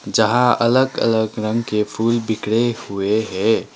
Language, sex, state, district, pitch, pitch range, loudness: Hindi, male, Sikkim, Gangtok, 110 Hz, 110-120 Hz, -18 LUFS